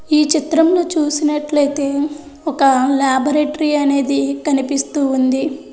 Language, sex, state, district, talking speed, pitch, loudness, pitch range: Telugu, female, Andhra Pradesh, Chittoor, 85 wpm, 290 Hz, -16 LUFS, 275-300 Hz